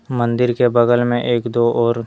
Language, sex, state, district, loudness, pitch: Hindi, male, Jharkhand, Deoghar, -16 LUFS, 120 Hz